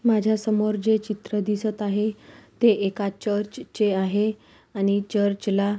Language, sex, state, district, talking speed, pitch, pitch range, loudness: Marathi, female, Maharashtra, Pune, 135 wpm, 210 Hz, 200-215 Hz, -24 LUFS